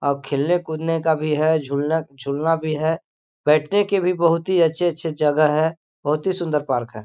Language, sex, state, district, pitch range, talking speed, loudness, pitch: Hindi, male, Chhattisgarh, Korba, 150-165 Hz, 195 wpm, -21 LUFS, 160 Hz